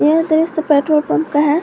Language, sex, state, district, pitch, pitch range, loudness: Hindi, female, Jharkhand, Garhwa, 310 Hz, 295-315 Hz, -15 LUFS